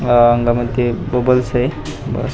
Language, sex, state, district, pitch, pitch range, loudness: Marathi, male, Maharashtra, Pune, 120 Hz, 120-125 Hz, -16 LUFS